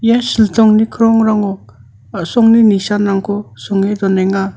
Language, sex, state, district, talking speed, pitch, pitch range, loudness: Garo, male, Meghalaya, North Garo Hills, 90 wpm, 205 Hz, 195-225 Hz, -13 LUFS